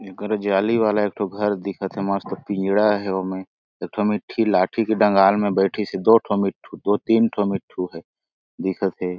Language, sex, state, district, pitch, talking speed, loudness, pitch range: Chhattisgarhi, male, Chhattisgarh, Jashpur, 100 Hz, 205 wpm, -21 LUFS, 95-105 Hz